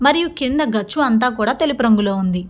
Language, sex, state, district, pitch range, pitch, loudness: Telugu, female, Andhra Pradesh, Guntur, 210-285 Hz, 245 Hz, -17 LUFS